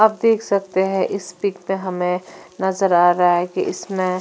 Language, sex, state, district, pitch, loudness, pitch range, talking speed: Hindi, female, Punjab, Fazilka, 190 Hz, -19 LUFS, 180-200 Hz, 200 wpm